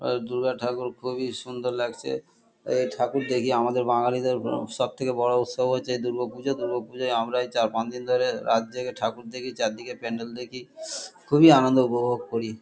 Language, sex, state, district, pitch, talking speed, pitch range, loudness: Bengali, male, West Bengal, Kolkata, 125 Hz, 165 wpm, 120-125 Hz, -25 LUFS